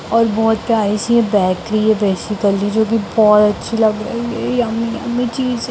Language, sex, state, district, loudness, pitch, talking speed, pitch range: Hindi, female, Bihar, Darbhanga, -16 LUFS, 220 Hz, 180 wpm, 210-235 Hz